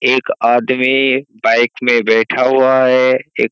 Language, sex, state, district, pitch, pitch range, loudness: Hindi, male, Bihar, Kishanganj, 130 Hz, 120-130 Hz, -13 LUFS